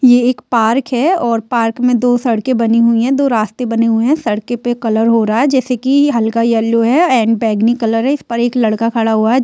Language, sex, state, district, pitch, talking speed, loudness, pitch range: Hindi, female, Bihar, Sitamarhi, 235 Hz, 250 wpm, -13 LUFS, 225-250 Hz